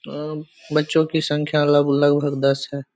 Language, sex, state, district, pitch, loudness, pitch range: Hindi, male, Bihar, Begusarai, 145 Hz, -20 LUFS, 140-155 Hz